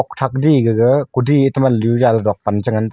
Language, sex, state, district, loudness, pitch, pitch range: Wancho, male, Arunachal Pradesh, Longding, -15 LUFS, 125 Hz, 110-135 Hz